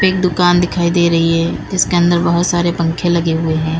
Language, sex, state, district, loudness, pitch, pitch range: Hindi, female, Uttar Pradesh, Lalitpur, -14 LUFS, 170 Hz, 165-175 Hz